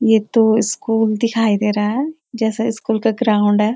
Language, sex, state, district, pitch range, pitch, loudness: Hindi, female, Uttarakhand, Uttarkashi, 215-230 Hz, 220 Hz, -17 LUFS